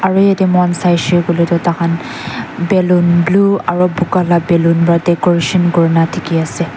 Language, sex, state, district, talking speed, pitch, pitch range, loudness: Nagamese, female, Nagaland, Dimapur, 150 wpm, 175 Hz, 170-180 Hz, -13 LUFS